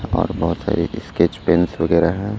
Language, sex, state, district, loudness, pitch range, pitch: Hindi, male, Chhattisgarh, Raipur, -19 LUFS, 85-95 Hz, 85 Hz